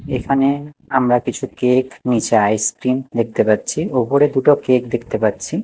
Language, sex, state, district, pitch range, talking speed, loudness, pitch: Bengali, male, Odisha, Nuapada, 120-135 Hz, 140 wpm, -17 LUFS, 125 Hz